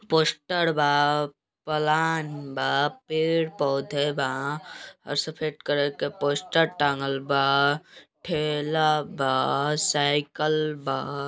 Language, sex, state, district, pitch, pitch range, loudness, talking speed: Hindi, male, Uttar Pradesh, Deoria, 145 Hz, 140-155 Hz, -25 LUFS, 90 wpm